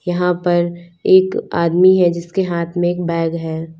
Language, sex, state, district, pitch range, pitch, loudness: Hindi, female, Uttar Pradesh, Lalitpur, 170-180 Hz, 175 Hz, -16 LUFS